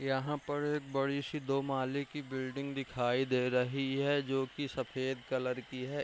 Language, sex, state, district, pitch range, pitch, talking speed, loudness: Hindi, male, Bihar, Bhagalpur, 130-140 Hz, 135 Hz, 180 wpm, -35 LUFS